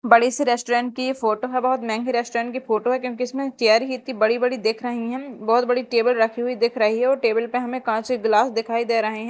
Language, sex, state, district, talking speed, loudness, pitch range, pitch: Hindi, female, Madhya Pradesh, Dhar, 265 wpm, -21 LUFS, 225-255 Hz, 240 Hz